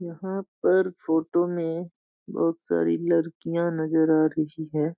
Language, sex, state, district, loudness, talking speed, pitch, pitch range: Hindi, male, Bihar, Saharsa, -25 LUFS, 130 wpm, 165 Hz, 160-175 Hz